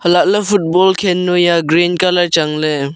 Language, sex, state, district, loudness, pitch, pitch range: Wancho, male, Arunachal Pradesh, Longding, -13 LUFS, 175 Hz, 165-185 Hz